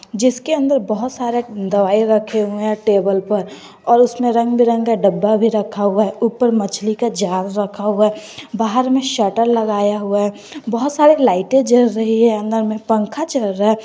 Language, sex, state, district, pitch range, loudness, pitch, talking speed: Hindi, female, Jharkhand, Garhwa, 205-240 Hz, -16 LUFS, 220 Hz, 190 wpm